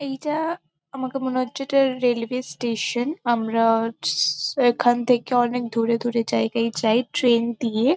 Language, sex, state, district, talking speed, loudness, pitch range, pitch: Bengali, female, West Bengal, Kolkata, 145 wpm, -22 LUFS, 230-260 Hz, 240 Hz